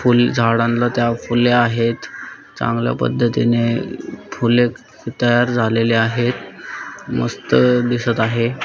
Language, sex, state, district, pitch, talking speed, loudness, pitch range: Marathi, male, Maharashtra, Solapur, 120 Hz, 95 wpm, -17 LUFS, 115-120 Hz